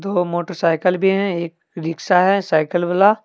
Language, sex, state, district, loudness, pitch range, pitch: Hindi, male, Jharkhand, Deoghar, -18 LUFS, 170-195 Hz, 180 Hz